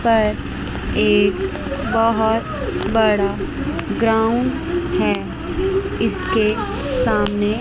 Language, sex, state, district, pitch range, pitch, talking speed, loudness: Hindi, female, Chandigarh, Chandigarh, 205-245 Hz, 220 Hz, 65 wpm, -19 LUFS